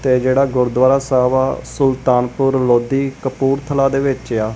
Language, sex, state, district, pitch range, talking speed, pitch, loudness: Punjabi, male, Punjab, Kapurthala, 125-135 Hz, 160 wpm, 130 Hz, -16 LUFS